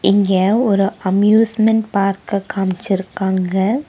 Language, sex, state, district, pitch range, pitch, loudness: Tamil, female, Tamil Nadu, Nilgiris, 190-220 Hz, 195 Hz, -16 LUFS